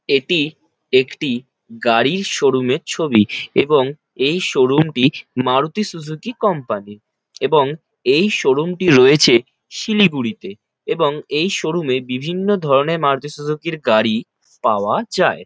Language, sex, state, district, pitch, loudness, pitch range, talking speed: Bengali, male, West Bengal, Jalpaiguri, 155 Hz, -17 LUFS, 130-195 Hz, 120 wpm